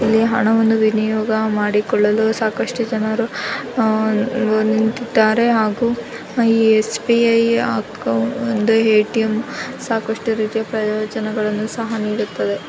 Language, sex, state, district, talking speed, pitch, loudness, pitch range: Kannada, female, Karnataka, Chamarajanagar, 90 wpm, 220 Hz, -18 LUFS, 215-230 Hz